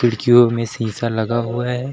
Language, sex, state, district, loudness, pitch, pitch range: Hindi, male, Uttar Pradesh, Lucknow, -18 LUFS, 120 Hz, 115-120 Hz